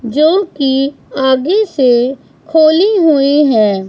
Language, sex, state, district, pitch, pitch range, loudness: Hindi, female, Punjab, Pathankot, 280 Hz, 260-320 Hz, -11 LUFS